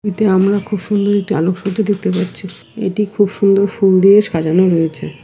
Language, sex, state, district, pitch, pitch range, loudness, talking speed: Bengali, female, West Bengal, Alipurduar, 195 Hz, 185-205 Hz, -14 LUFS, 170 wpm